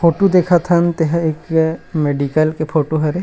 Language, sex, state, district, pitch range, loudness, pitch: Chhattisgarhi, male, Chhattisgarh, Rajnandgaon, 155-170 Hz, -16 LUFS, 160 Hz